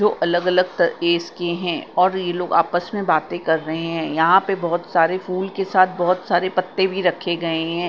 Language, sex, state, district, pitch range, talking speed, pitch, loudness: Hindi, female, Punjab, Kapurthala, 170-185 Hz, 215 wpm, 175 Hz, -20 LUFS